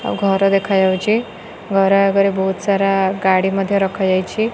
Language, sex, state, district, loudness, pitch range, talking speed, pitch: Odia, female, Odisha, Khordha, -16 LUFS, 190-195 Hz, 130 wpm, 195 Hz